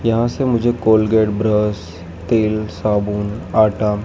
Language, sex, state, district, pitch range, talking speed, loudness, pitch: Hindi, male, Madhya Pradesh, Dhar, 105-110 Hz, 120 wpm, -17 LUFS, 110 Hz